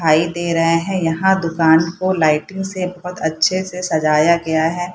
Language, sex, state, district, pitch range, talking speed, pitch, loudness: Hindi, female, Bihar, Saharsa, 160-180 Hz, 180 wpm, 170 Hz, -17 LUFS